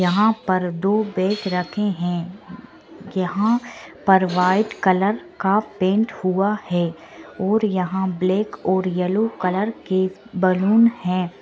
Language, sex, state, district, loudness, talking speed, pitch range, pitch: Hindi, female, Uttar Pradesh, Budaun, -21 LUFS, 120 wpm, 185-210 Hz, 190 Hz